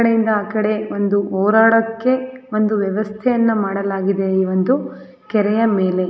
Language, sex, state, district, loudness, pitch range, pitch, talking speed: Kannada, female, Karnataka, Belgaum, -17 LUFS, 195-225 Hz, 215 Hz, 120 wpm